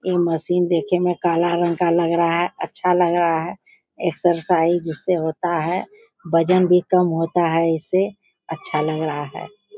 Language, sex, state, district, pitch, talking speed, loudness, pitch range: Hindi, female, Bihar, Bhagalpur, 175 Hz, 170 wpm, -20 LUFS, 165-180 Hz